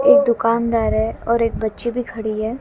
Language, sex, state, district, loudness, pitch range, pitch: Hindi, female, Haryana, Jhajjar, -19 LUFS, 220-235 Hz, 230 Hz